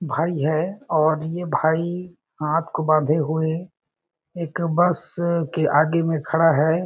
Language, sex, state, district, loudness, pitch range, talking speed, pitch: Hindi, male, Chhattisgarh, Balrampur, -21 LUFS, 155-170 Hz, 140 wpm, 165 Hz